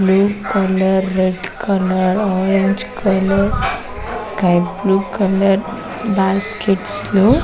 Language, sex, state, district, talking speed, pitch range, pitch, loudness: Telugu, female, Andhra Pradesh, Sri Satya Sai, 95 wpm, 190-200 Hz, 195 Hz, -17 LUFS